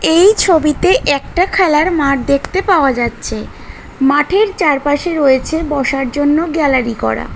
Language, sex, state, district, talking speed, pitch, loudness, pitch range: Bengali, female, West Bengal, North 24 Parganas, 120 wpm, 295 Hz, -13 LUFS, 275-340 Hz